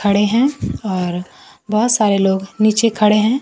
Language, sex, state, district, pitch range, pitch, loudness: Hindi, female, Bihar, Kaimur, 195-220 Hz, 210 Hz, -16 LUFS